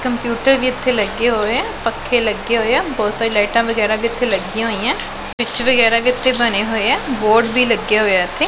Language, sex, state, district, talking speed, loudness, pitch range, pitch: Punjabi, female, Punjab, Pathankot, 220 wpm, -16 LUFS, 215-245 Hz, 230 Hz